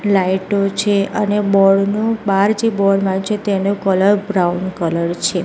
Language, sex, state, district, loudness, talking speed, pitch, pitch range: Gujarati, female, Gujarat, Gandhinagar, -16 LUFS, 165 wpm, 195 Hz, 190-205 Hz